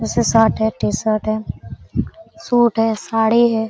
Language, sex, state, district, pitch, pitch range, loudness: Hindi, female, Jharkhand, Sahebganj, 220 Hz, 215-225 Hz, -17 LUFS